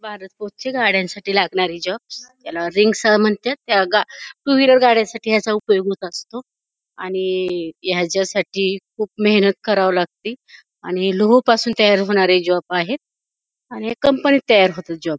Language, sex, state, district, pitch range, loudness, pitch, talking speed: Marathi, female, Maharashtra, Pune, 185-230 Hz, -17 LUFS, 205 Hz, 140 wpm